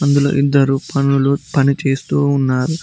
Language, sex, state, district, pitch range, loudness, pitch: Telugu, male, Telangana, Mahabubabad, 135-140 Hz, -15 LUFS, 140 Hz